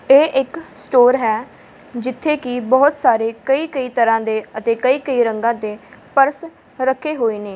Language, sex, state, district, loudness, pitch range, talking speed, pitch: Punjabi, female, Punjab, Fazilka, -17 LUFS, 230-275 Hz, 165 wpm, 255 Hz